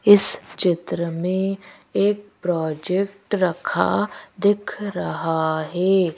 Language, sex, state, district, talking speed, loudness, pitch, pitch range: Hindi, female, Madhya Pradesh, Bhopal, 85 wpm, -20 LUFS, 185 Hz, 170-200 Hz